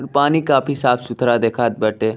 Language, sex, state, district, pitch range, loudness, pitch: Bhojpuri, male, Uttar Pradesh, Deoria, 115-140 Hz, -17 LUFS, 125 Hz